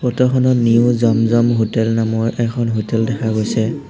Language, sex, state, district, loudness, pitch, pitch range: Assamese, male, Assam, Hailakandi, -16 LUFS, 115 Hz, 115-120 Hz